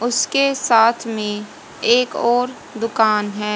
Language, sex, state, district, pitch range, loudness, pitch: Hindi, female, Haryana, Charkhi Dadri, 215-245 Hz, -18 LUFS, 230 Hz